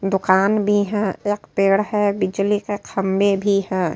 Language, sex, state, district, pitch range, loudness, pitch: Hindi, female, Uttar Pradesh, Etah, 195-205 Hz, -19 LUFS, 200 Hz